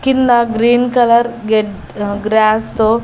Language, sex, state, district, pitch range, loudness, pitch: Telugu, female, Andhra Pradesh, Annamaya, 215-240 Hz, -13 LUFS, 225 Hz